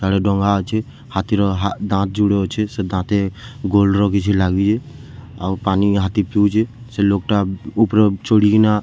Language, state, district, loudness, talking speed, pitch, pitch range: Sambalpuri, Odisha, Sambalpur, -18 LUFS, 165 wpm, 100 Hz, 100-110 Hz